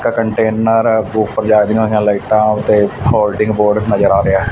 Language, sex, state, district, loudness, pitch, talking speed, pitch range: Punjabi, male, Punjab, Fazilka, -13 LUFS, 110 Hz, 185 wpm, 105-110 Hz